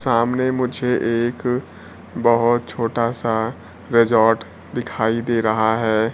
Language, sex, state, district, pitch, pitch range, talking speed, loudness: Hindi, male, Bihar, Kaimur, 115 Hz, 110-120 Hz, 105 wpm, -19 LUFS